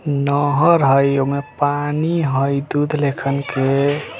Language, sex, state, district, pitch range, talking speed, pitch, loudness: Bajjika, male, Bihar, Vaishali, 140-145 Hz, 100 wpm, 140 Hz, -17 LUFS